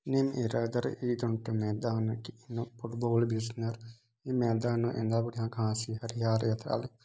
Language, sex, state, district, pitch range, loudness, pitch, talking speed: Sadri, male, Chhattisgarh, Jashpur, 115-120 Hz, -33 LUFS, 115 Hz, 130 wpm